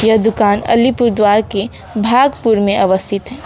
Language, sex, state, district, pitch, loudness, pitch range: Hindi, female, West Bengal, Alipurduar, 220 Hz, -13 LUFS, 205-235 Hz